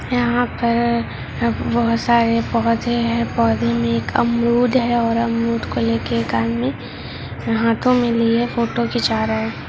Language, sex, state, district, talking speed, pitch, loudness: Hindi, male, Bihar, Gopalganj, 155 wpm, 230 Hz, -18 LUFS